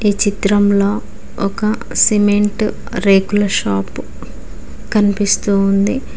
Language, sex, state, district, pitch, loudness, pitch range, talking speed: Telugu, female, Telangana, Mahabubabad, 205 Hz, -15 LUFS, 195-205 Hz, 70 wpm